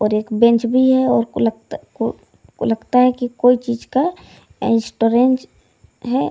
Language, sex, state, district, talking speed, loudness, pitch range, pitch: Hindi, female, Bihar, Darbhanga, 115 wpm, -17 LUFS, 225-255 Hz, 240 Hz